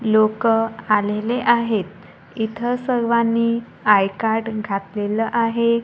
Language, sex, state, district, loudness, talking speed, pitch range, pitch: Marathi, female, Maharashtra, Gondia, -20 LUFS, 90 wpm, 210-235 Hz, 225 Hz